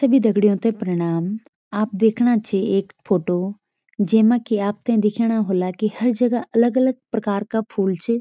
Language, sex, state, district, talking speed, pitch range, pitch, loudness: Garhwali, female, Uttarakhand, Tehri Garhwal, 160 wpm, 200-235 Hz, 215 Hz, -20 LUFS